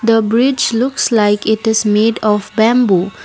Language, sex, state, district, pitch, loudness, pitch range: English, female, Assam, Kamrup Metropolitan, 220 Hz, -13 LUFS, 210-230 Hz